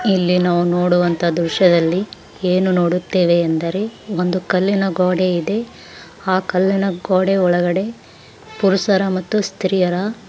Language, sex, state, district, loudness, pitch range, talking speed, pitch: Kannada, female, Karnataka, Raichur, -17 LUFS, 175-195 Hz, 110 wpm, 185 Hz